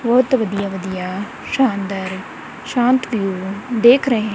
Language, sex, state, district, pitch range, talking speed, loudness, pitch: Punjabi, female, Punjab, Kapurthala, 195-250 Hz, 110 wpm, -18 LUFS, 215 Hz